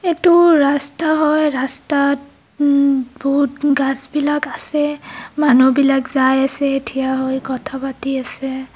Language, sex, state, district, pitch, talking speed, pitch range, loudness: Assamese, female, Assam, Kamrup Metropolitan, 275 Hz, 115 wpm, 265-295 Hz, -16 LUFS